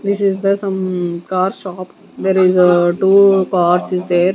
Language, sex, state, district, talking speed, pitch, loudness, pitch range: English, female, Punjab, Kapurthala, 165 wpm, 185 Hz, -14 LUFS, 180-195 Hz